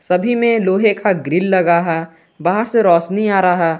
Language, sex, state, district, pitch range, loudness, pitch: Hindi, male, Jharkhand, Garhwa, 170-210 Hz, -15 LUFS, 180 Hz